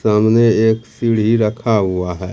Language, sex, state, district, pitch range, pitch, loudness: Hindi, male, Bihar, Katihar, 105-115 Hz, 110 Hz, -15 LUFS